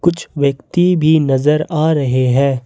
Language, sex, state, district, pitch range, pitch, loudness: Hindi, male, Jharkhand, Ranchi, 135-160 Hz, 150 Hz, -14 LUFS